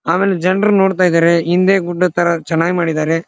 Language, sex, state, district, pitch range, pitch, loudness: Kannada, male, Karnataka, Dharwad, 165-185 Hz, 175 Hz, -14 LUFS